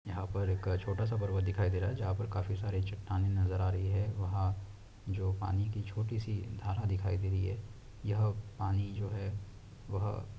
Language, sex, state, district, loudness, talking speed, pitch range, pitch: Hindi, male, Jharkhand, Jamtara, -35 LUFS, 200 wpm, 95-105 Hz, 100 Hz